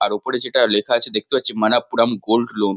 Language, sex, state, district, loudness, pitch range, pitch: Bengali, male, West Bengal, Kolkata, -18 LUFS, 105-120 Hz, 115 Hz